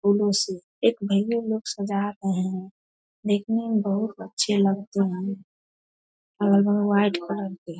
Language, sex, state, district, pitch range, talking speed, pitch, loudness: Hindi, female, Bihar, Darbhanga, 195-205 Hz, 155 wpm, 200 Hz, -25 LUFS